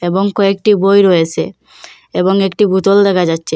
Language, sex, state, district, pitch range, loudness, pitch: Bengali, female, Assam, Hailakandi, 180-200 Hz, -12 LUFS, 195 Hz